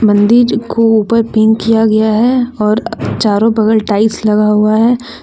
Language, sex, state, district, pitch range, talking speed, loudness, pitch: Hindi, female, Jharkhand, Deoghar, 215-230 Hz, 160 wpm, -11 LUFS, 220 Hz